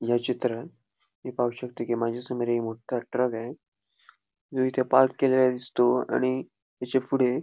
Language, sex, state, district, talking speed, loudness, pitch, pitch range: Marathi, male, Goa, North and South Goa, 155 wpm, -26 LUFS, 125 Hz, 120-130 Hz